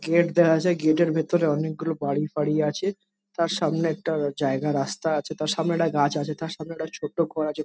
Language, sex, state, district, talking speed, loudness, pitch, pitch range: Bengali, male, West Bengal, Jhargram, 205 wpm, -25 LUFS, 160 Hz, 150-170 Hz